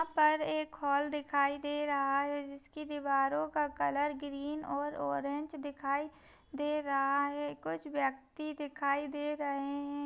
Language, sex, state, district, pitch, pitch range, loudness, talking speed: Hindi, female, Bihar, Kishanganj, 285 Hz, 280-295 Hz, -35 LUFS, 150 wpm